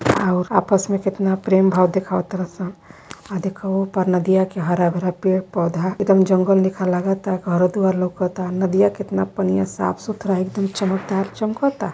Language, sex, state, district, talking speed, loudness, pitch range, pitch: Hindi, female, Uttar Pradesh, Varanasi, 175 wpm, -20 LUFS, 180-195 Hz, 190 Hz